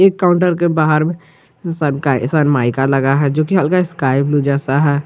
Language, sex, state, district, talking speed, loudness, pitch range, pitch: Hindi, male, Jharkhand, Garhwa, 155 wpm, -15 LUFS, 140-170 Hz, 150 Hz